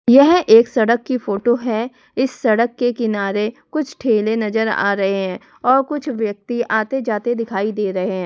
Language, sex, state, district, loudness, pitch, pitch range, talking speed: Hindi, female, Delhi, New Delhi, -18 LUFS, 225 Hz, 210-250 Hz, 180 wpm